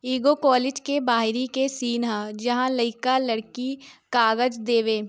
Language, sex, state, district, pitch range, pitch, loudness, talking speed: Bhojpuri, female, Bihar, Gopalganj, 230-260 Hz, 250 Hz, -23 LUFS, 155 wpm